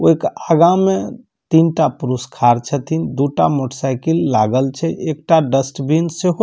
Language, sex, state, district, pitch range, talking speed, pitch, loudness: Maithili, male, Bihar, Samastipur, 130-165 Hz, 175 wpm, 155 Hz, -16 LUFS